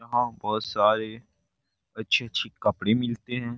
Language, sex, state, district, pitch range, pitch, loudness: Hindi, male, Bihar, Darbhanga, 105-120 Hz, 115 Hz, -26 LUFS